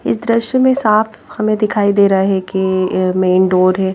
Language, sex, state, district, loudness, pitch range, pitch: Hindi, female, Haryana, Jhajjar, -14 LUFS, 185-215 Hz, 195 Hz